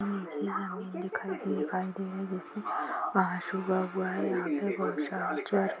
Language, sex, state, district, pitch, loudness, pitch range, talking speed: Bhojpuri, female, Bihar, Saran, 190 Hz, -32 LUFS, 185-195 Hz, 145 wpm